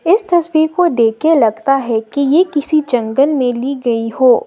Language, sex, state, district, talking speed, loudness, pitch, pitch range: Hindi, female, Assam, Sonitpur, 200 wpm, -14 LUFS, 275 Hz, 240-320 Hz